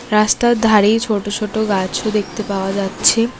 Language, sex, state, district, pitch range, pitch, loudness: Bengali, female, West Bengal, Cooch Behar, 200-220 Hz, 210 Hz, -16 LUFS